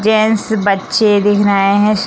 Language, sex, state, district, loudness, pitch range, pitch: Hindi, female, Bihar, Jamui, -12 LUFS, 200-215 Hz, 205 Hz